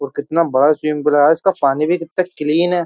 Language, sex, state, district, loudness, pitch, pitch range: Hindi, male, Uttar Pradesh, Jyotiba Phule Nagar, -16 LUFS, 155 Hz, 145-170 Hz